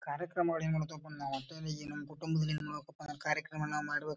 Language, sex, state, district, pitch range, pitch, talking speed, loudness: Kannada, male, Karnataka, Bijapur, 150-160 Hz, 150 Hz, 160 wpm, -37 LUFS